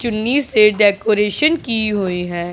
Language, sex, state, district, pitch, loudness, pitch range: Hindi, male, Punjab, Pathankot, 215 Hz, -16 LUFS, 200-235 Hz